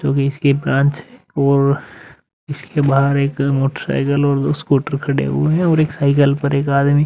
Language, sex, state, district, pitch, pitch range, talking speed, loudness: Hindi, male, Uttar Pradesh, Muzaffarnagar, 140 Hz, 140-145 Hz, 180 wpm, -16 LUFS